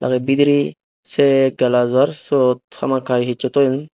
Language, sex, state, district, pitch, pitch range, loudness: Chakma, male, Tripura, Dhalai, 130 Hz, 125-140 Hz, -17 LUFS